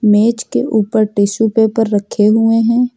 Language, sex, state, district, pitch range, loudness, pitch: Hindi, female, Uttar Pradesh, Lucknow, 210-230 Hz, -13 LUFS, 220 Hz